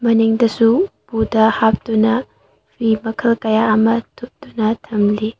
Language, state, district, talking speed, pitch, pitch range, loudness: Manipuri, Manipur, Imphal West, 100 wpm, 225 Hz, 220-230 Hz, -16 LUFS